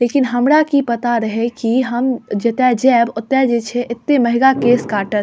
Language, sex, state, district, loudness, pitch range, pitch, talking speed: Maithili, female, Bihar, Saharsa, -15 LUFS, 235-260 Hz, 240 Hz, 185 wpm